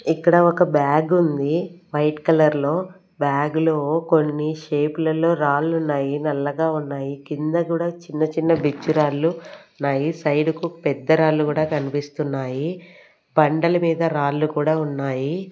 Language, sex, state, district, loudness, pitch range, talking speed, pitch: Telugu, female, Andhra Pradesh, Sri Satya Sai, -21 LUFS, 145-165 Hz, 130 wpm, 155 Hz